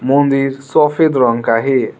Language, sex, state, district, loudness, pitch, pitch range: Hindi, male, Arunachal Pradesh, Lower Dibang Valley, -14 LUFS, 135 Hz, 130-140 Hz